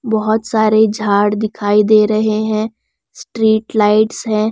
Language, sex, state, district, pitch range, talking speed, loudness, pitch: Hindi, female, Bihar, West Champaran, 215-220 Hz, 130 wpm, -14 LUFS, 215 Hz